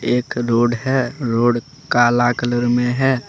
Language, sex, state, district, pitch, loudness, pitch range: Hindi, male, Jharkhand, Deoghar, 120 Hz, -18 LUFS, 120-125 Hz